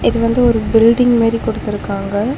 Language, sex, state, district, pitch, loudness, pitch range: Tamil, female, Tamil Nadu, Chennai, 230 Hz, -14 LUFS, 225-240 Hz